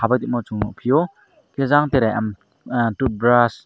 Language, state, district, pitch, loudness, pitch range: Kokborok, Tripura, Dhalai, 120 Hz, -20 LUFS, 110-130 Hz